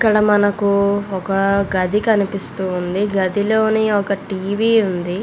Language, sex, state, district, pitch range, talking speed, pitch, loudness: Telugu, female, Andhra Pradesh, Visakhapatnam, 195-210 Hz, 115 wpm, 200 Hz, -17 LUFS